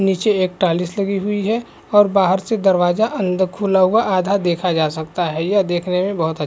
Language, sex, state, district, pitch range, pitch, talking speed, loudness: Hindi, male, Chhattisgarh, Bilaspur, 175-200 Hz, 190 Hz, 215 wpm, -18 LUFS